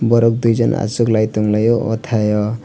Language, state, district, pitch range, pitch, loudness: Kokborok, Tripura, West Tripura, 110-115 Hz, 115 Hz, -16 LUFS